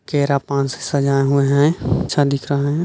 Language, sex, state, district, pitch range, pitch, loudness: Hindi, male, Chhattisgarh, Bilaspur, 140-145 Hz, 140 Hz, -18 LUFS